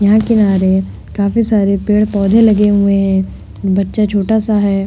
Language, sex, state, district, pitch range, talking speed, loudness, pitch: Hindi, female, Uttar Pradesh, Hamirpur, 195-215 Hz, 160 wpm, -13 LUFS, 205 Hz